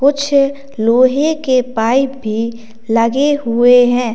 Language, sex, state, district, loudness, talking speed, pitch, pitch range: Hindi, female, Uttar Pradesh, Lalitpur, -14 LUFS, 115 wpm, 250 Hz, 230-275 Hz